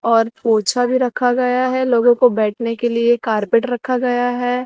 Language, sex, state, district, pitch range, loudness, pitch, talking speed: Hindi, female, Maharashtra, Mumbai Suburban, 230-250 Hz, -17 LUFS, 245 Hz, 195 wpm